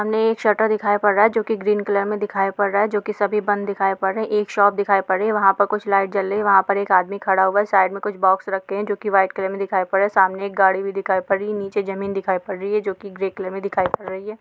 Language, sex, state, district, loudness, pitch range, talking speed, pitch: Hindi, female, Bihar, Jamui, -20 LUFS, 195-210 Hz, 335 wpm, 200 Hz